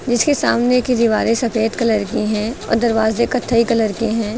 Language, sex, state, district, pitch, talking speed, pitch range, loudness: Hindi, female, Uttar Pradesh, Lucknow, 230 Hz, 190 wpm, 220-240 Hz, -17 LUFS